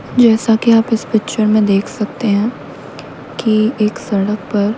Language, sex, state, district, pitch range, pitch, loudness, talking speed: Hindi, female, Haryana, Rohtak, 210-225 Hz, 215 Hz, -14 LUFS, 165 wpm